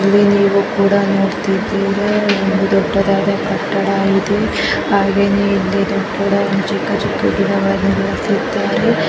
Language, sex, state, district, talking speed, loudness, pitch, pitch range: Kannada, female, Karnataka, Bellary, 100 wpm, -15 LUFS, 200 Hz, 195-200 Hz